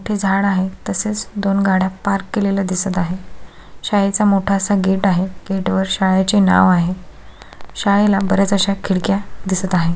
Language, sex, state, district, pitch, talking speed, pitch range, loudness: Marathi, female, Maharashtra, Solapur, 195 Hz, 155 wpm, 190-200 Hz, -17 LUFS